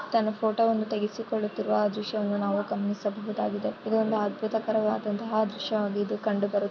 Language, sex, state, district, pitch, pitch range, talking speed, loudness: Kannada, female, Karnataka, Shimoga, 210 Hz, 205-220 Hz, 125 wpm, -28 LUFS